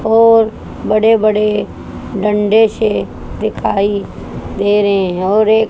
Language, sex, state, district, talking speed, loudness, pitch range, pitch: Hindi, female, Haryana, Charkhi Dadri, 105 wpm, -13 LUFS, 205-220 Hz, 210 Hz